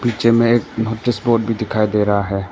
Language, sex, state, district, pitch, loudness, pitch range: Hindi, male, Arunachal Pradesh, Papum Pare, 110 Hz, -17 LUFS, 105-115 Hz